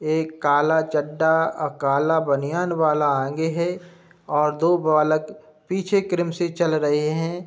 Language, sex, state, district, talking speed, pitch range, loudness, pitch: Hindi, male, Uttar Pradesh, Budaun, 145 wpm, 150-175 Hz, -21 LUFS, 160 Hz